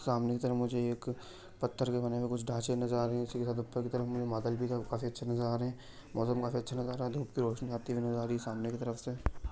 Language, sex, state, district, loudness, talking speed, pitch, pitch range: Garhwali, male, Uttarakhand, Tehri Garhwal, -36 LUFS, 320 wpm, 120 Hz, 120-125 Hz